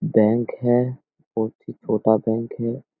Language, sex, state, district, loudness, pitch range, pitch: Hindi, male, Bihar, Jahanabad, -22 LUFS, 110-125 Hz, 115 Hz